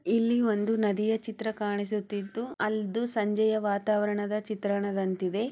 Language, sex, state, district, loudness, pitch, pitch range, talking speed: Kannada, female, Karnataka, Chamarajanagar, -29 LUFS, 210 Hz, 205-220 Hz, 110 wpm